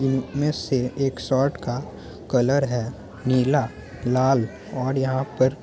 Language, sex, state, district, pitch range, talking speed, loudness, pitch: Hindi, male, Bihar, Muzaffarpur, 125-135 Hz, 140 wpm, -23 LUFS, 130 Hz